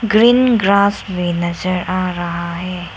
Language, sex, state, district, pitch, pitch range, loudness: Hindi, female, Arunachal Pradesh, Lower Dibang Valley, 185 Hz, 175-200 Hz, -16 LUFS